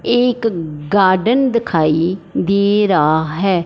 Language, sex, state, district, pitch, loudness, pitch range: Hindi, male, Punjab, Fazilka, 190 Hz, -15 LUFS, 160-220 Hz